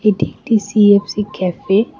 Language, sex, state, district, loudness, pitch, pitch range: Bengali, female, West Bengal, Cooch Behar, -15 LUFS, 205 Hz, 195-220 Hz